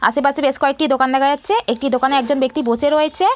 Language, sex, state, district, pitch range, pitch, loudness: Bengali, female, West Bengal, Malda, 265-300 Hz, 280 Hz, -17 LUFS